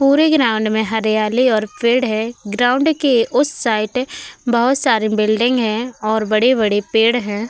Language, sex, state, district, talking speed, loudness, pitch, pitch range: Hindi, female, Uttar Pradesh, Budaun, 150 wpm, -16 LUFS, 235 Hz, 215-255 Hz